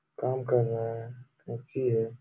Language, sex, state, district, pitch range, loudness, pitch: Hindi, male, Uttar Pradesh, Jalaun, 115-125 Hz, -31 LUFS, 120 Hz